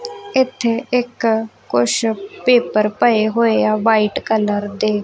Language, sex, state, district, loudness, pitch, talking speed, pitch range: Punjabi, female, Punjab, Kapurthala, -17 LUFS, 225 Hz, 120 wpm, 210-245 Hz